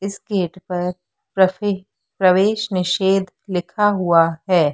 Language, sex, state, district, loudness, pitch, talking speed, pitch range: Hindi, female, Madhya Pradesh, Dhar, -19 LUFS, 185 Hz, 100 wpm, 180-195 Hz